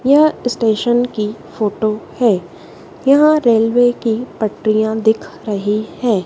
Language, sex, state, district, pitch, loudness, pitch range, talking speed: Hindi, female, Madhya Pradesh, Dhar, 225 Hz, -16 LUFS, 215-245 Hz, 115 wpm